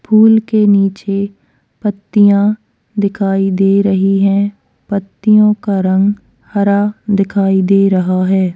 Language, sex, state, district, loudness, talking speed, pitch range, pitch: Hindi, female, Chhattisgarh, Korba, -13 LUFS, 110 wpm, 195-205 Hz, 200 Hz